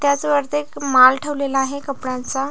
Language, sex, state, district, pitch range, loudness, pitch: Marathi, female, Maharashtra, Pune, 265-285 Hz, -18 LUFS, 275 Hz